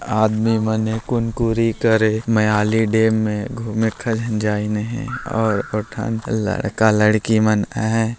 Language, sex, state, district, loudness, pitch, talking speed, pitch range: Hindi, male, Chhattisgarh, Jashpur, -19 LUFS, 110 Hz, 125 wpm, 110-115 Hz